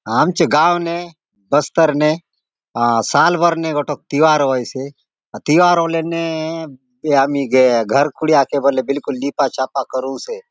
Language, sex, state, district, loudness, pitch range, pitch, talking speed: Halbi, male, Chhattisgarh, Bastar, -16 LUFS, 130-165 Hz, 145 Hz, 150 wpm